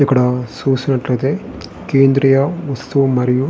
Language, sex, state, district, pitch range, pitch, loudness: Telugu, male, Andhra Pradesh, Srikakulam, 125-140 Hz, 135 Hz, -16 LUFS